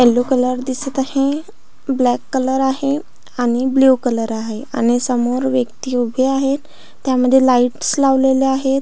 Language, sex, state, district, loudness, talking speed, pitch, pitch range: Marathi, female, Maharashtra, Pune, -17 LUFS, 135 wpm, 260 Hz, 245-270 Hz